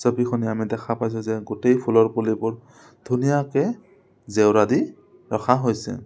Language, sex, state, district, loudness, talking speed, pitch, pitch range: Assamese, male, Assam, Sonitpur, -22 LUFS, 130 wpm, 115 Hz, 110-125 Hz